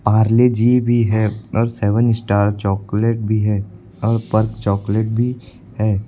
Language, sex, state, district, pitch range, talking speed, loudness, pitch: Hindi, male, Uttar Pradesh, Lucknow, 105-115 Hz, 160 wpm, -17 LUFS, 110 Hz